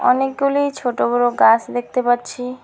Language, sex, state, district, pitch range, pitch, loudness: Bengali, female, West Bengal, Alipurduar, 245-270 Hz, 250 Hz, -18 LUFS